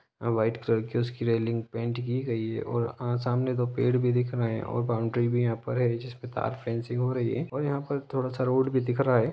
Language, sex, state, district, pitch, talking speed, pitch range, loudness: Hindi, male, Jharkhand, Sahebganj, 120 Hz, 255 wpm, 115-125 Hz, -28 LUFS